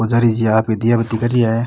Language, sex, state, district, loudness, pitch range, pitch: Rajasthani, male, Rajasthan, Nagaur, -16 LUFS, 110-120 Hz, 115 Hz